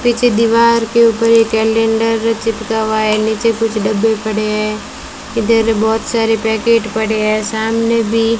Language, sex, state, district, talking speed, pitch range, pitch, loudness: Hindi, female, Rajasthan, Bikaner, 165 wpm, 220-230 Hz, 225 Hz, -14 LUFS